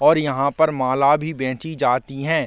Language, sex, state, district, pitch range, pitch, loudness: Hindi, male, Chhattisgarh, Bilaspur, 130-155 Hz, 140 Hz, -20 LUFS